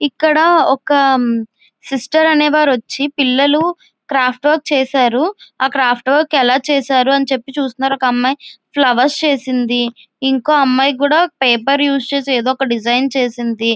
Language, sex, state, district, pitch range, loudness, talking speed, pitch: Telugu, female, Andhra Pradesh, Visakhapatnam, 255-290 Hz, -14 LUFS, 140 wpm, 270 Hz